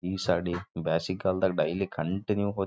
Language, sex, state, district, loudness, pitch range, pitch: Kannada, male, Karnataka, Raichur, -29 LUFS, 85-95 Hz, 95 Hz